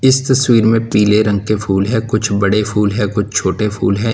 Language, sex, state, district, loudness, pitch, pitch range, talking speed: Hindi, male, Uttar Pradesh, Lalitpur, -14 LUFS, 105 Hz, 100-115 Hz, 230 wpm